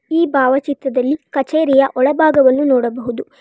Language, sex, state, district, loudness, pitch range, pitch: Kannada, female, Karnataka, Bangalore, -15 LUFS, 260-295 Hz, 275 Hz